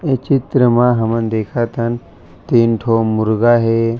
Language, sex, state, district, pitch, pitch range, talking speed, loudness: Chhattisgarhi, male, Chhattisgarh, Raigarh, 115 Hz, 115-120 Hz, 135 wpm, -15 LUFS